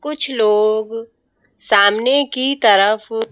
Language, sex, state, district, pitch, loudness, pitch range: Hindi, female, Madhya Pradesh, Bhopal, 225 Hz, -15 LUFS, 215-260 Hz